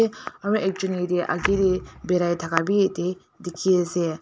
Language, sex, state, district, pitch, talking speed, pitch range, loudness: Nagamese, female, Nagaland, Dimapur, 180 Hz, 200 wpm, 175-195 Hz, -23 LUFS